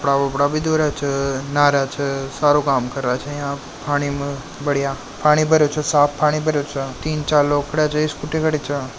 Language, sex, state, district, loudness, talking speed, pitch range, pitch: Marwari, male, Rajasthan, Nagaur, -19 LUFS, 215 wpm, 140-150 Hz, 145 Hz